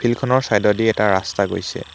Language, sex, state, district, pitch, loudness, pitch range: Assamese, male, Assam, Hailakandi, 105 Hz, -18 LUFS, 100-120 Hz